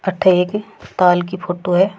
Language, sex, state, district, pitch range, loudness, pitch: Rajasthani, female, Rajasthan, Churu, 180-190 Hz, -17 LUFS, 185 Hz